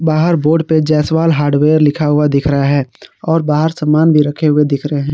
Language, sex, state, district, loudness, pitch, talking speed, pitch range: Hindi, male, Jharkhand, Garhwa, -13 LUFS, 150 Hz, 220 wpm, 145-160 Hz